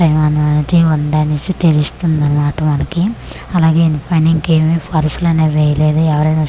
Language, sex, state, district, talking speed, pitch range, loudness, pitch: Telugu, female, Andhra Pradesh, Manyam, 100 wpm, 150-165 Hz, -13 LUFS, 155 Hz